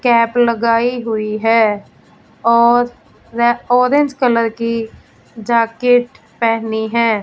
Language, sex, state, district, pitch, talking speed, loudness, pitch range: Hindi, female, Punjab, Fazilka, 230 Hz, 90 wpm, -15 LUFS, 225-245 Hz